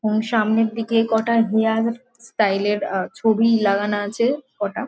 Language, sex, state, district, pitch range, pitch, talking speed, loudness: Bengali, female, West Bengal, Jhargram, 210-230 Hz, 225 Hz, 135 wpm, -20 LUFS